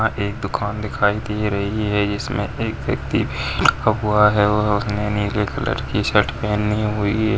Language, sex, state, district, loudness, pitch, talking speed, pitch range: Hindi, male, Maharashtra, Chandrapur, -20 LUFS, 105 Hz, 155 wpm, 105-110 Hz